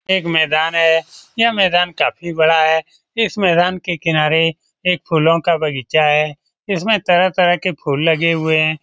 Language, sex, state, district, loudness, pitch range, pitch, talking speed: Hindi, male, Bihar, Lakhisarai, -15 LUFS, 160-180 Hz, 165 Hz, 175 wpm